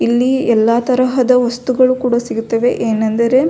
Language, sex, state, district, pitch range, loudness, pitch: Kannada, female, Karnataka, Belgaum, 230-255 Hz, -14 LUFS, 245 Hz